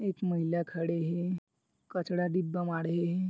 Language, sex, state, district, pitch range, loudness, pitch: Chhattisgarhi, male, Chhattisgarh, Bilaspur, 170-180 Hz, -33 LUFS, 175 Hz